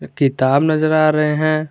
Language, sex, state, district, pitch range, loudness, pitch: Hindi, male, Jharkhand, Garhwa, 140-155 Hz, -16 LUFS, 155 Hz